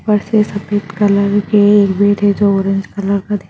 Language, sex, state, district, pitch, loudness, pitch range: Hindi, female, Bihar, Jahanabad, 205 Hz, -13 LUFS, 200-205 Hz